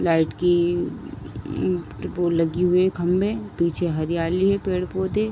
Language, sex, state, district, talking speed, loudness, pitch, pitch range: Hindi, female, Uttar Pradesh, Ghazipur, 115 wpm, -23 LUFS, 180 Hz, 170-185 Hz